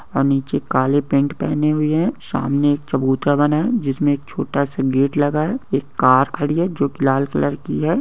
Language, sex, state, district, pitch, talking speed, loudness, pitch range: Hindi, male, Maharashtra, Nagpur, 140 Hz, 215 wpm, -19 LUFS, 135-145 Hz